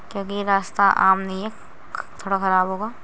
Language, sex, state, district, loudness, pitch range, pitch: Hindi, female, Uttar Pradesh, Muzaffarnagar, -21 LUFS, 190-200 Hz, 195 Hz